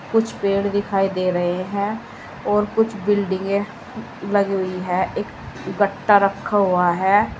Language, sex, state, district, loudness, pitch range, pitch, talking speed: Hindi, female, Uttar Pradesh, Saharanpur, -20 LUFS, 185-205 Hz, 200 Hz, 140 wpm